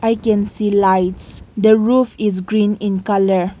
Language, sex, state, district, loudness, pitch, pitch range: English, female, Nagaland, Kohima, -16 LUFS, 205 Hz, 195-220 Hz